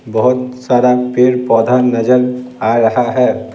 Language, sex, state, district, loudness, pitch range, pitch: Hindi, male, Bihar, Patna, -13 LUFS, 115-125 Hz, 125 Hz